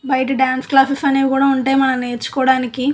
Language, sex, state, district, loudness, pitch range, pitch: Telugu, female, Andhra Pradesh, Visakhapatnam, -16 LUFS, 260-270 Hz, 265 Hz